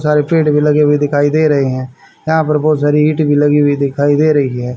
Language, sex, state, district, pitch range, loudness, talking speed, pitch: Hindi, male, Haryana, Rohtak, 145-150 Hz, -12 LUFS, 265 wpm, 150 Hz